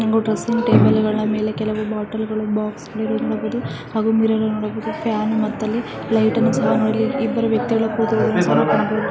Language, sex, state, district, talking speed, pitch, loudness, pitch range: Kannada, female, Karnataka, Chamarajanagar, 145 wpm, 220 Hz, -19 LUFS, 215-225 Hz